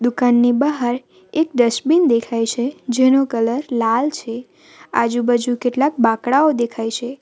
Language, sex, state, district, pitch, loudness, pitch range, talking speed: Gujarati, female, Gujarat, Valsad, 245 Hz, -18 LUFS, 235-275 Hz, 125 wpm